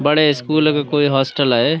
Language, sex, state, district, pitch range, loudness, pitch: Urdu, male, Uttar Pradesh, Budaun, 135-155 Hz, -16 LUFS, 145 Hz